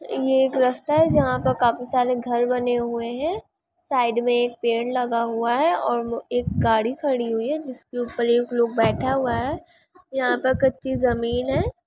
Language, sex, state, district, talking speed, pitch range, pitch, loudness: Hindi, female, Bihar, Sitamarhi, 185 wpm, 235-265 Hz, 245 Hz, -22 LUFS